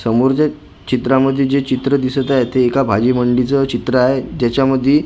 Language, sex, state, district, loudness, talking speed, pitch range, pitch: Marathi, male, Maharashtra, Gondia, -15 LUFS, 200 wpm, 125-135 Hz, 130 Hz